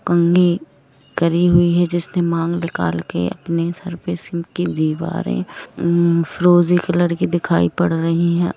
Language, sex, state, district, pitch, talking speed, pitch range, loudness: Hindi, female, Jharkhand, Jamtara, 170 Hz, 155 wpm, 165-175 Hz, -18 LUFS